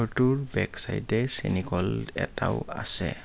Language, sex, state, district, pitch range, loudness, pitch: Assamese, male, Assam, Kamrup Metropolitan, 115-135 Hz, -21 LUFS, 130 Hz